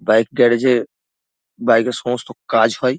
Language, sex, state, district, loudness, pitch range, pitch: Bengali, male, West Bengal, Dakshin Dinajpur, -17 LUFS, 115-125 Hz, 120 Hz